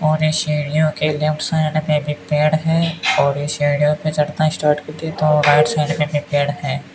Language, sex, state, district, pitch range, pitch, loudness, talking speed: Hindi, male, Rajasthan, Bikaner, 150-155 Hz, 150 Hz, -18 LUFS, 190 wpm